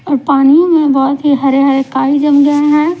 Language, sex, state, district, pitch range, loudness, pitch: Hindi, female, Punjab, Pathankot, 275-295 Hz, -10 LUFS, 285 Hz